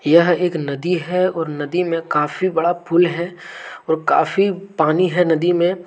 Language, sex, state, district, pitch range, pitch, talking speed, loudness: Hindi, male, Jharkhand, Deoghar, 160-180 Hz, 175 Hz, 175 wpm, -18 LUFS